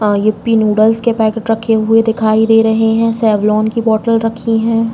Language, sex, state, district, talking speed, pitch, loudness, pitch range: Hindi, female, Uttar Pradesh, Jalaun, 195 wpm, 225 Hz, -12 LUFS, 220-225 Hz